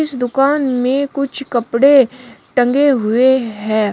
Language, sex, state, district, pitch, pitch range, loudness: Hindi, female, Uttar Pradesh, Shamli, 260 Hz, 240-275 Hz, -14 LUFS